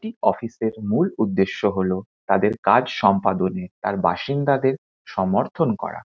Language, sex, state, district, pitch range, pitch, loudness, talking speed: Bengali, male, West Bengal, Kolkata, 95-120 Hz, 105 Hz, -22 LUFS, 130 wpm